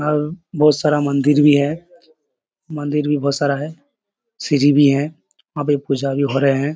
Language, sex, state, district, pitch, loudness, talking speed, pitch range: Hindi, male, Bihar, Kishanganj, 150 Hz, -17 LUFS, 185 wpm, 140-155 Hz